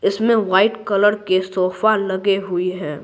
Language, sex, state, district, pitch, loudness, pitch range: Hindi, female, Bihar, Patna, 195 Hz, -18 LUFS, 185-210 Hz